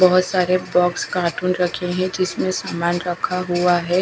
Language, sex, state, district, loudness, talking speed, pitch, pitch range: Hindi, female, Bihar, West Champaran, -20 LUFS, 165 wpm, 180 Hz, 175-185 Hz